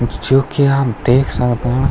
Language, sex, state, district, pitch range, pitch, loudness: Garhwali, male, Uttarakhand, Tehri Garhwal, 120-135 Hz, 125 Hz, -15 LUFS